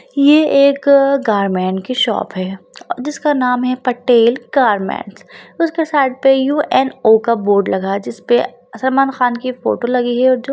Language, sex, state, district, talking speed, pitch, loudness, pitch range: Hindi, female, Bihar, Lakhisarai, 190 wpm, 255 Hz, -15 LUFS, 230-275 Hz